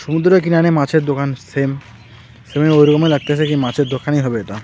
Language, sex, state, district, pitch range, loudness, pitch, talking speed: Bengali, male, West Bengal, Alipurduar, 130-155 Hz, -15 LUFS, 145 Hz, 170 wpm